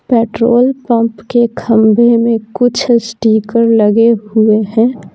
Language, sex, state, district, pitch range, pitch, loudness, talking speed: Hindi, female, Bihar, Patna, 220-235 Hz, 230 Hz, -11 LUFS, 115 wpm